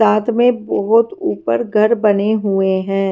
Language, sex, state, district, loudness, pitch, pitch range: Hindi, female, Himachal Pradesh, Shimla, -15 LUFS, 210 Hz, 195-225 Hz